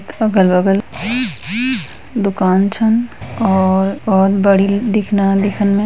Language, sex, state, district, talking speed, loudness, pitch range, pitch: Hindi, female, Uttarakhand, Uttarkashi, 115 wpm, -14 LUFS, 195-220 Hz, 200 Hz